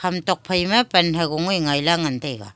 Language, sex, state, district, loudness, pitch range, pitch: Wancho, female, Arunachal Pradesh, Longding, -20 LUFS, 145-180 Hz, 170 Hz